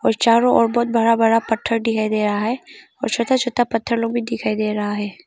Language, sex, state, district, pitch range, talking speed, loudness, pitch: Hindi, female, Arunachal Pradesh, Papum Pare, 215-235 Hz, 225 wpm, -19 LUFS, 230 Hz